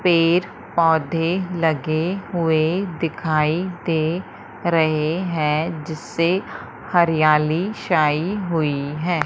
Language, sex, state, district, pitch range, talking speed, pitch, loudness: Hindi, female, Madhya Pradesh, Umaria, 155-175 Hz, 85 wpm, 165 Hz, -20 LUFS